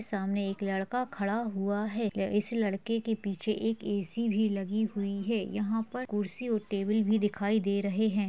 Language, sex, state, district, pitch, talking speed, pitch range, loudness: Hindi, female, Uttar Pradesh, Jyotiba Phule Nagar, 210 Hz, 190 wpm, 200-220 Hz, -31 LUFS